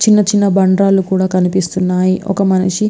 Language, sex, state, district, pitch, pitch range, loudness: Telugu, female, Andhra Pradesh, Visakhapatnam, 190 Hz, 185-195 Hz, -13 LUFS